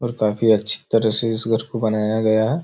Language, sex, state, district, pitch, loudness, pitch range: Hindi, male, Chhattisgarh, Raigarh, 110 Hz, -19 LUFS, 110-115 Hz